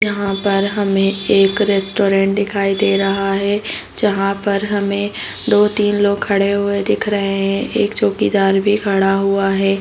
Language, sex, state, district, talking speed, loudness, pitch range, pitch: Hindi, female, Bihar, Saran, 155 wpm, -16 LUFS, 195-205 Hz, 200 Hz